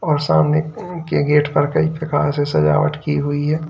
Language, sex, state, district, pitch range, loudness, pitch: Hindi, male, Uttar Pradesh, Lalitpur, 145-155 Hz, -18 LUFS, 150 Hz